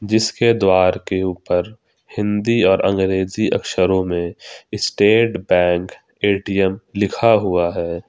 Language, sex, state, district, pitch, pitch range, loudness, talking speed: Hindi, male, Jharkhand, Ranchi, 95 Hz, 90-110 Hz, -17 LUFS, 110 wpm